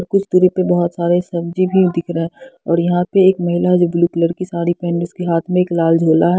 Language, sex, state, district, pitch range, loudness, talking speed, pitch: Hindi, female, Haryana, Jhajjar, 170-185 Hz, -16 LUFS, 280 wpm, 175 Hz